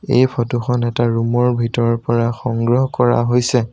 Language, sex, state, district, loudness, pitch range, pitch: Assamese, male, Assam, Sonitpur, -17 LUFS, 115-125 Hz, 120 Hz